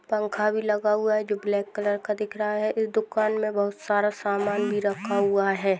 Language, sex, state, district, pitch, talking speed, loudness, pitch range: Hindi, female, Maharashtra, Dhule, 210 Hz, 225 wpm, -25 LUFS, 205-215 Hz